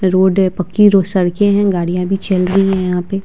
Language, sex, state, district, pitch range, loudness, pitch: Hindi, female, Bihar, Vaishali, 180-195 Hz, -14 LUFS, 190 Hz